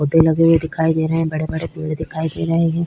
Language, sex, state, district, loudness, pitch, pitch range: Hindi, female, Uttar Pradesh, Budaun, -18 LUFS, 160 Hz, 160-165 Hz